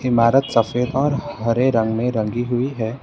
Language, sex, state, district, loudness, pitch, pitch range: Hindi, male, Assam, Sonitpur, -19 LUFS, 120 Hz, 115-130 Hz